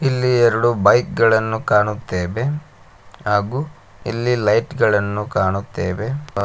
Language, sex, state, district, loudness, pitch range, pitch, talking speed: Kannada, male, Karnataka, Koppal, -18 LUFS, 100-125 Hz, 110 Hz, 100 wpm